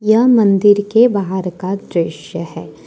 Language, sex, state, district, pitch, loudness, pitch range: Hindi, female, Jharkhand, Ranchi, 200 Hz, -14 LUFS, 180-215 Hz